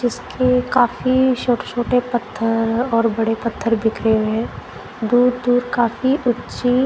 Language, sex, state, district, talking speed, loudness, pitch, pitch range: Hindi, female, Punjab, Kapurthala, 120 wpm, -18 LUFS, 245 Hz, 230-250 Hz